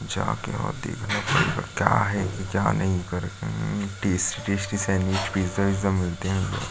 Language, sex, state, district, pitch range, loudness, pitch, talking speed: Hindi, male, Chhattisgarh, Sukma, 95-110 Hz, -25 LUFS, 100 Hz, 170 wpm